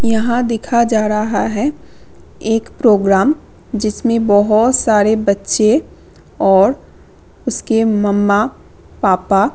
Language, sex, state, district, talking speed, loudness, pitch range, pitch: Hindi, female, Delhi, New Delhi, 100 wpm, -14 LUFS, 205-235 Hz, 220 Hz